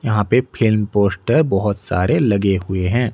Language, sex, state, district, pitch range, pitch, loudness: Hindi, male, Odisha, Nuapada, 100-120 Hz, 105 Hz, -17 LUFS